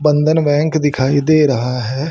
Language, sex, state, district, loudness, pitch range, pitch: Hindi, male, Haryana, Charkhi Dadri, -15 LUFS, 135-155 Hz, 145 Hz